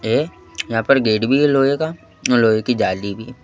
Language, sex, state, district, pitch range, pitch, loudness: Hindi, male, Madhya Pradesh, Bhopal, 110-140 Hz, 125 Hz, -17 LUFS